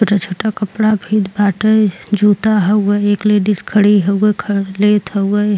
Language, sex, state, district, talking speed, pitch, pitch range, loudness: Bhojpuri, female, Uttar Pradesh, Deoria, 140 wpm, 205 Hz, 200-210 Hz, -14 LUFS